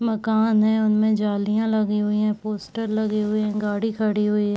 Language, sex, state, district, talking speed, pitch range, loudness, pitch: Hindi, female, Chhattisgarh, Raigarh, 195 wpm, 210-220 Hz, -22 LUFS, 215 Hz